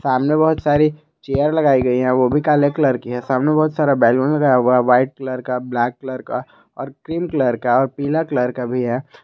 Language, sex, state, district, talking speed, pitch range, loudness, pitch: Hindi, male, Jharkhand, Garhwa, 235 wpm, 125-150 Hz, -17 LUFS, 135 Hz